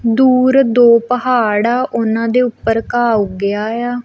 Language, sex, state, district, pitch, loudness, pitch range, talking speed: Punjabi, female, Punjab, Kapurthala, 235 Hz, -13 LUFS, 225-250 Hz, 135 wpm